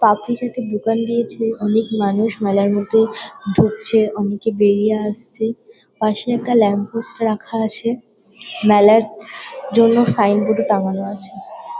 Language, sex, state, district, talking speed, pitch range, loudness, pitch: Bengali, female, West Bengal, Kolkata, 130 wpm, 210-230 Hz, -17 LUFS, 220 Hz